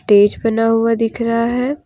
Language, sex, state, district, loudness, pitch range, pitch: Hindi, female, Jharkhand, Deoghar, -15 LUFS, 225-235 Hz, 230 Hz